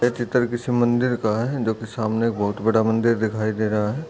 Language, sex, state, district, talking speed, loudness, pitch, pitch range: Hindi, male, Uttar Pradesh, Etah, 220 wpm, -22 LUFS, 115 Hz, 110-120 Hz